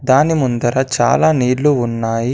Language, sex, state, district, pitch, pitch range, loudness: Telugu, male, Telangana, Komaram Bheem, 125 Hz, 120-145 Hz, -15 LUFS